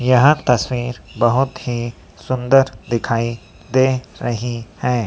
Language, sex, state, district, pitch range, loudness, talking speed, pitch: Hindi, female, Madhya Pradesh, Dhar, 115-130 Hz, -18 LUFS, 105 wpm, 120 Hz